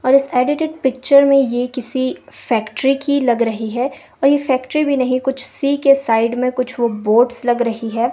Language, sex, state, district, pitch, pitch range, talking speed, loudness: Hindi, female, Himachal Pradesh, Shimla, 255 Hz, 240-275 Hz, 200 wpm, -16 LUFS